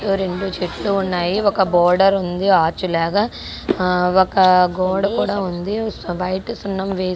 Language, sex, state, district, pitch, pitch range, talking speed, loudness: Telugu, female, Andhra Pradesh, Guntur, 190 Hz, 180-195 Hz, 140 wpm, -18 LUFS